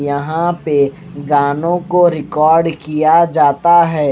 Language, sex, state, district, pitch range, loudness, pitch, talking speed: Hindi, male, Odisha, Malkangiri, 145-170 Hz, -13 LUFS, 155 Hz, 115 wpm